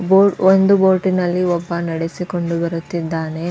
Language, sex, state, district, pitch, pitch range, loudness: Kannada, female, Karnataka, Dakshina Kannada, 175 Hz, 170-190 Hz, -17 LUFS